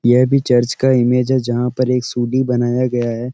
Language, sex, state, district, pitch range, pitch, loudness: Hindi, male, Uttar Pradesh, Etah, 120-130 Hz, 125 Hz, -16 LUFS